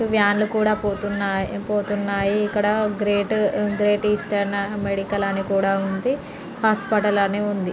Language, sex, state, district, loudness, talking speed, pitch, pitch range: Telugu, female, Andhra Pradesh, Srikakulam, -22 LUFS, 125 wpm, 205 Hz, 200-210 Hz